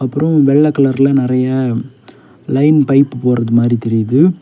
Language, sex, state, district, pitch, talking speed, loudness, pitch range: Tamil, male, Tamil Nadu, Kanyakumari, 135 Hz, 120 wpm, -13 LUFS, 125-145 Hz